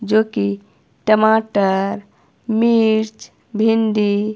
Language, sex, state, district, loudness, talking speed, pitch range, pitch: Hindi, female, Himachal Pradesh, Shimla, -17 LUFS, 70 wpm, 205-220 Hz, 215 Hz